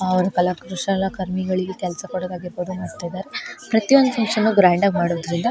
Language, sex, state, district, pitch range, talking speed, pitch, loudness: Kannada, female, Karnataka, Shimoga, 180-195 Hz, 130 wpm, 185 Hz, -21 LUFS